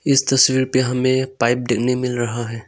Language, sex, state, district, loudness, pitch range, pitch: Hindi, male, Arunachal Pradesh, Longding, -18 LUFS, 120-130 Hz, 125 Hz